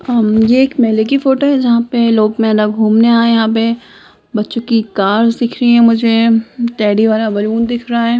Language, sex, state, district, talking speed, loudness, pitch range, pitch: Hindi, female, Bihar, Sitamarhi, 210 wpm, -12 LUFS, 220-235 Hz, 230 Hz